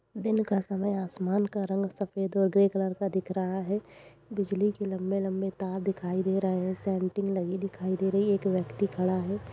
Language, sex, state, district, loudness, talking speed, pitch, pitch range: Hindi, female, Uttar Pradesh, Budaun, -30 LUFS, 190 wpm, 195 Hz, 190-200 Hz